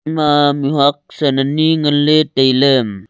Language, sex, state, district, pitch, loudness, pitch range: Wancho, male, Arunachal Pradesh, Longding, 145 Hz, -13 LUFS, 135-155 Hz